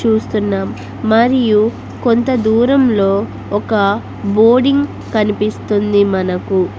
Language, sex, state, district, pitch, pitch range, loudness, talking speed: Telugu, female, Andhra Pradesh, Guntur, 215 Hz, 200-235 Hz, -14 LUFS, 70 wpm